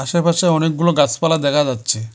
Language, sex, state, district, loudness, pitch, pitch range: Bengali, male, West Bengal, Cooch Behar, -16 LUFS, 155 Hz, 135-170 Hz